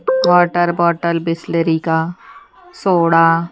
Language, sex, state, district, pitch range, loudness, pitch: Hindi, female, Haryana, Charkhi Dadri, 165-180 Hz, -15 LUFS, 170 Hz